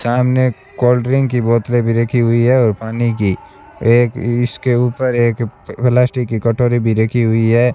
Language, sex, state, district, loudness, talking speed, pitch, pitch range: Hindi, male, Rajasthan, Bikaner, -15 LUFS, 180 wpm, 120 Hz, 115-125 Hz